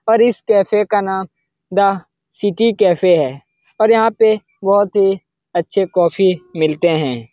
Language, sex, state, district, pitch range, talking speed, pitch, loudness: Hindi, male, Bihar, Lakhisarai, 170-210 Hz, 155 wpm, 195 Hz, -15 LUFS